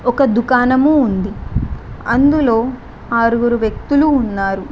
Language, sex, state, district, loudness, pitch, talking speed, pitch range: Telugu, female, Telangana, Mahabubabad, -15 LUFS, 240 Hz, 90 wpm, 230-275 Hz